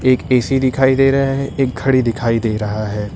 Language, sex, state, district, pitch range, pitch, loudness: Hindi, male, Uttar Pradesh, Lucknow, 115-135 Hz, 130 Hz, -16 LUFS